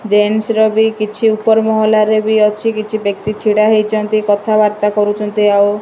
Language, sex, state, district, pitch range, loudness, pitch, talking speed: Odia, male, Odisha, Malkangiri, 210-220 Hz, -13 LUFS, 215 Hz, 165 wpm